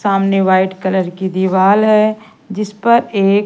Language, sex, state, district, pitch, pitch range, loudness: Hindi, female, Madhya Pradesh, Katni, 195 Hz, 190-215 Hz, -14 LUFS